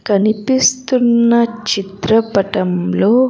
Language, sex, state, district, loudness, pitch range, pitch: Telugu, female, Andhra Pradesh, Sri Satya Sai, -14 LUFS, 195-240 Hz, 220 Hz